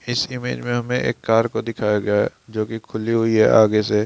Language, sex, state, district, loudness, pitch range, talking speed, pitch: Hindi, female, Bihar, East Champaran, -20 LUFS, 110-115 Hz, 250 wpm, 115 Hz